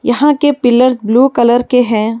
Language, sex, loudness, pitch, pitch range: Hindi, female, -11 LUFS, 245 Hz, 235-260 Hz